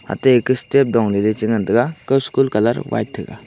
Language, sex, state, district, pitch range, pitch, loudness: Wancho, male, Arunachal Pradesh, Longding, 110-135 Hz, 120 Hz, -17 LUFS